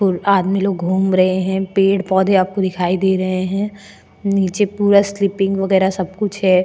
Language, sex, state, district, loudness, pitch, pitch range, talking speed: Hindi, female, Goa, North and South Goa, -17 LUFS, 190 Hz, 185-200 Hz, 170 wpm